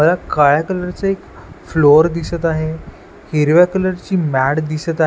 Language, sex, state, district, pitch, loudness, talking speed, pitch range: Marathi, male, Maharashtra, Washim, 165 Hz, -16 LUFS, 165 wpm, 155-180 Hz